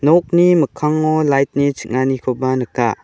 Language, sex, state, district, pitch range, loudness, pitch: Garo, male, Meghalaya, West Garo Hills, 130-155 Hz, -16 LUFS, 140 Hz